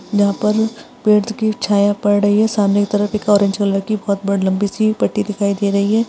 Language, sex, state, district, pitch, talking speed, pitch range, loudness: Hindi, female, Uttar Pradesh, Varanasi, 205 Hz, 235 wpm, 200-215 Hz, -16 LUFS